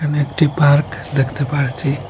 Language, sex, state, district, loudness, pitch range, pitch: Bengali, male, Assam, Hailakandi, -17 LUFS, 135-150 Hz, 145 Hz